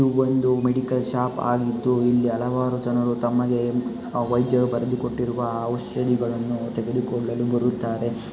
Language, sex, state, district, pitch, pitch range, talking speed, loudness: Kannada, male, Karnataka, Shimoga, 120 Hz, 120-125 Hz, 110 wpm, -23 LUFS